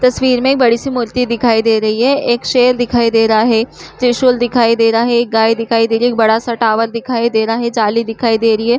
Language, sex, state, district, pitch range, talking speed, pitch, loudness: Hindi, female, Chhattisgarh, Korba, 225-245 Hz, 265 wpm, 235 Hz, -13 LUFS